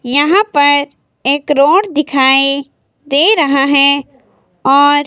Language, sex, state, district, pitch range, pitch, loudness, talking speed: Hindi, female, Himachal Pradesh, Shimla, 275-290 Hz, 285 Hz, -11 LUFS, 105 wpm